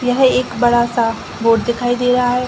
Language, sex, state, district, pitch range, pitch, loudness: Hindi, female, Chhattisgarh, Bilaspur, 235-250 Hz, 245 Hz, -15 LUFS